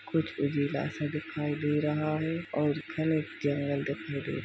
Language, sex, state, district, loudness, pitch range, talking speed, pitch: Hindi, male, Uttar Pradesh, Jalaun, -31 LUFS, 145-155 Hz, 190 wpm, 150 Hz